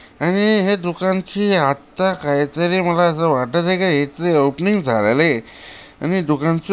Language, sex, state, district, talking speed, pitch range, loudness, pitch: Marathi, male, Maharashtra, Chandrapur, 150 wpm, 145-190 Hz, -17 LUFS, 175 Hz